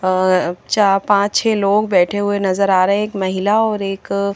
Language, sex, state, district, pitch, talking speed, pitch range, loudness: Hindi, female, Haryana, Charkhi Dadri, 200 Hz, 220 wpm, 190-205 Hz, -16 LUFS